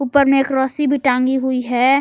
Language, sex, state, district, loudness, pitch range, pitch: Hindi, female, Jharkhand, Palamu, -16 LUFS, 260-275 Hz, 265 Hz